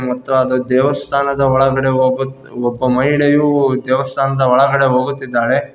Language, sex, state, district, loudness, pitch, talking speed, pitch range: Kannada, male, Karnataka, Koppal, -14 LUFS, 135 Hz, 105 wpm, 130-140 Hz